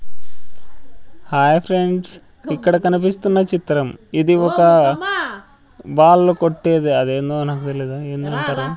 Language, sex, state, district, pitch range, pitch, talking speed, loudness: Telugu, male, Andhra Pradesh, Sri Satya Sai, 145-180 Hz, 165 Hz, 95 wpm, -17 LUFS